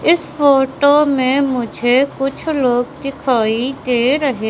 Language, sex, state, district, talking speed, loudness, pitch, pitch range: Hindi, female, Madhya Pradesh, Katni, 120 wpm, -15 LUFS, 270 Hz, 245-280 Hz